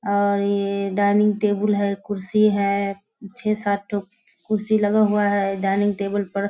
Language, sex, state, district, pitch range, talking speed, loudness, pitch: Hindi, female, Bihar, Kishanganj, 200-210 Hz, 150 wpm, -21 LUFS, 205 Hz